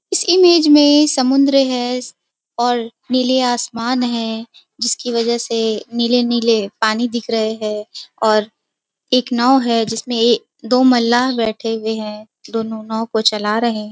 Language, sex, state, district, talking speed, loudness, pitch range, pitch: Hindi, female, Bihar, Jamui, 145 wpm, -16 LUFS, 220-250 Hz, 235 Hz